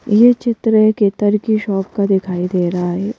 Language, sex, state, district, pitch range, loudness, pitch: Hindi, female, Madhya Pradesh, Bhopal, 190-220 Hz, -15 LUFS, 205 Hz